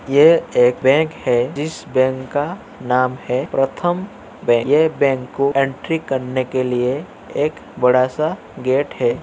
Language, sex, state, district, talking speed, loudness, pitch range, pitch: Hindi, male, Uttar Pradesh, Jyotiba Phule Nagar, 155 wpm, -18 LUFS, 130-160 Hz, 135 Hz